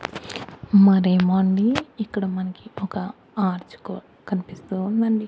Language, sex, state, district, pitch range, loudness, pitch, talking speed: Telugu, male, Andhra Pradesh, Annamaya, 185-215 Hz, -22 LUFS, 195 Hz, 115 wpm